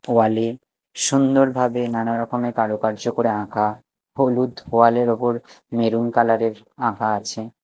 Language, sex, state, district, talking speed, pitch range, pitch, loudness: Bengali, male, Odisha, Nuapada, 125 wpm, 110-120 Hz, 115 Hz, -21 LUFS